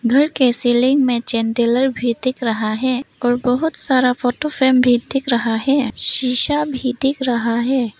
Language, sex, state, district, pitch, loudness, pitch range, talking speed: Hindi, female, Arunachal Pradesh, Papum Pare, 250 Hz, -16 LUFS, 240-265 Hz, 165 wpm